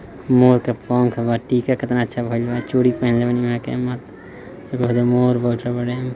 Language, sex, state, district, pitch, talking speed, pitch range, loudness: Hindi, male, Bihar, Gopalganj, 120 Hz, 95 wpm, 120-125 Hz, -19 LUFS